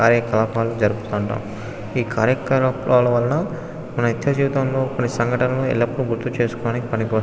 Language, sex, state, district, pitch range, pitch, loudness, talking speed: Telugu, male, Telangana, Nalgonda, 115-130 Hz, 120 Hz, -20 LUFS, 125 wpm